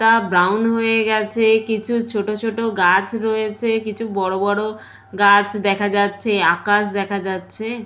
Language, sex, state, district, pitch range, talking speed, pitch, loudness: Bengali, female, West Bengal, Purulia, 200-225 Hz, 135 wpm, 215 Hz, -18 LUFS